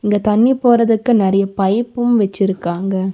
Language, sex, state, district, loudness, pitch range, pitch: Tamil, female, Tamil Nadu, Nilgiris, -15 LUFS, 195-235 Hz, 210 Hz